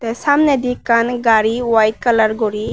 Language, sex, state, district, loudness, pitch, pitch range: Chakma, female, Tripura, West Tripura, -15 LUFS, 230 Hz, 220-245 Hz